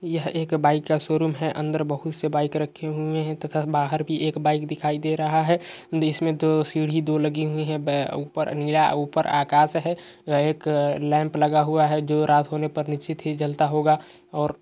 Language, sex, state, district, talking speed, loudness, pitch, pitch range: Hindi, male, Uttar Pradesh, Etah, 205 wpm, -23 LUFS, 155 Hz, 150-155 Hz